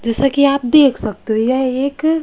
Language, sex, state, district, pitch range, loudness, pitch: Hindi, female, Maharashtra, Gondia, 230-280 Hz, -15 LUFS, 270 Hz